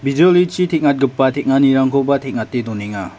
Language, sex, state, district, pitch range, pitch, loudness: Garo, male, Meghalaya, West Garo Hills, 130-145 Hz, 135 Hz, -15 LUFS